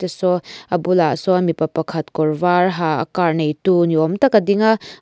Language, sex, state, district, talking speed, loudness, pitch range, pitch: Mizo, female, Mizoram, Aizawl, 215 wpm, -17 LUFS, 160-185 Hz, 175 Hz